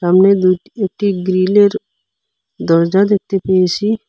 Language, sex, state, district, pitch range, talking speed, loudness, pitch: Bengali, male, Assam, Hailakandi, 185-205 Hz, 115 wpm, -14 LUFS, 195 Hz